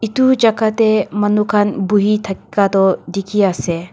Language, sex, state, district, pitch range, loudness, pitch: Nagamese, female, Nagaland, Dimapur, 195-215 Hz, -15 LUFS, 205 Hz